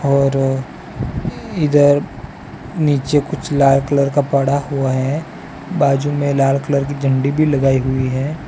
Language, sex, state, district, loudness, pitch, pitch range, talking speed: Hindi, male, Gujarat, Valsad, -17 LUFS, 140 Hz, 135-145 Hz, 140 wpm